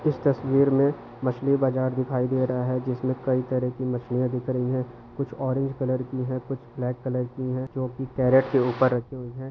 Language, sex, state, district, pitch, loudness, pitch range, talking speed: Hindi, male, Andhra Pradesh, Srikakulam, 130 Hz, -26 LUFS, 125-130 Hz, 40 wpm